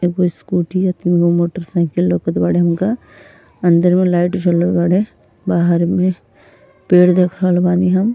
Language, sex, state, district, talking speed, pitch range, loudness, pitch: Bhojpuri, female, Uttar Pradesh, Ghazipur, 155 wpm, 170-185 Hz, -15 LUFS, 180 Hz